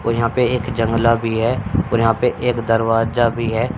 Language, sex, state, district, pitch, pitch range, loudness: Hindi, male, Haryana, Charkhi Dadri, 115 Hz, 115-120 Hz, -18 LUFS